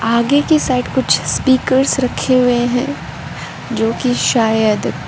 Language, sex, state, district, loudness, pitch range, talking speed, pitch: Hindi, female, Arunachal Pradesh, Lower Dibang Valley, -15 LUFS, 220-260 Hz, 140 wpm, 245 Hz